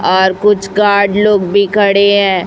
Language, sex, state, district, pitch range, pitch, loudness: Hindi, female, Chhattisgarh, Raipur, 195-205 Hz, 200 Hz, -11 LUFS